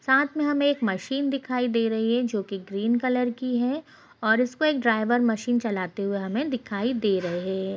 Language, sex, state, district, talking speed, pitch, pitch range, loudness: Hindi, female, Bihar, Bhagalpur, 200 wpm, 240 Hz, 205-255 Hz, -25 LUFS